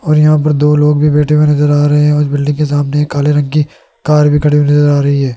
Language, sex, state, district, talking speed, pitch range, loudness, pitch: Hindi, male, Rajasthan, Jaipur, 290 wpm, 145-150 Hz, -10 LUFS, 150 Hz